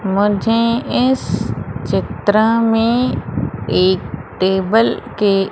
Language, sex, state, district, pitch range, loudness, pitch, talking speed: Hindi, female, Madhya Pradesh, Umaria, 195-230 Hz, -16 LUFS, 220 Hz, 75 wpm